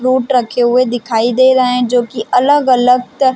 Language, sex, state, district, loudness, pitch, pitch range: Hindi, female, Chhattisgarh, Bilaspur, -12 LUFS, 250 Hz, 245-260 Hz